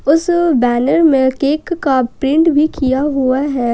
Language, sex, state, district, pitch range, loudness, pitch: Hindi, female, Jharkhand, Ranchi, 260-310 Hz, -14 LUFS, 280 Hz